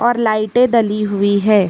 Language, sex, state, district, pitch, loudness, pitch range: Hindi, female, Karnataka, Bangalore, 215 Hz, -15 LUFS, 205-235 Hz